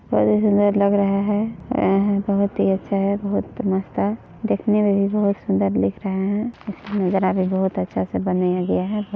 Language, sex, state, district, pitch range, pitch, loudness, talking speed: Hindi, female, Chhattisgarh, Balrampur, 185-205 Hz, 200 Hz, -21 LUFS, 155 wpm